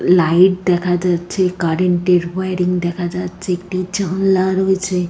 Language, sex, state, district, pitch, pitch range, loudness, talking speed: Bengali, female, West Bengal, Jalpaiguri, 180 Hz, 180-185 Hz, -17 LUFS, 130 wpm